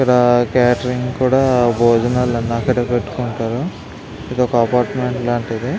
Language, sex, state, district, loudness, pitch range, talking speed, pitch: Telugu, male, Andhra Pradesh, Visakhapatnam, -17 LUFS, 120-125 Hz, 105 wpm, 125 Hz